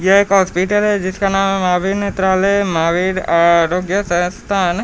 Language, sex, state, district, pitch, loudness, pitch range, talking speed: Hindi, male, Bihar, Patna, 190 Hz, -15 LUFS, 180-195 Hz, 150 wpm